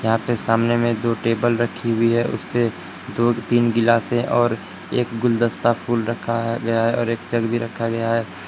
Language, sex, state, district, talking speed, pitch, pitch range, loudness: Hindi, male, Jharkhand, Palamu, 200 wpm, 115 Hz, 115-120 Hz, -20 LUFS